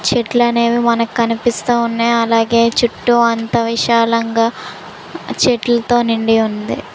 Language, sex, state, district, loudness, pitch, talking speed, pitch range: Telugu, female, Andhra Pradesh, Visakhapatnam, -14 LUFS, 235 Hz, 105 wpm, 230-240 Hz